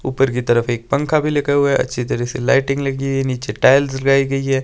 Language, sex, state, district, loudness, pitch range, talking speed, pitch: Hindi, male, Himachal Pradesh, Shimla, -17 LUFS, 130-140 Hz, 260 wpm, 135 Hz